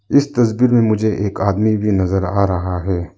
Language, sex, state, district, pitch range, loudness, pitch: Hindi, male, Arunachal Pradesh, Lower Dibang Valley, 95-110 Hz, -16 LUFS, 100 Hz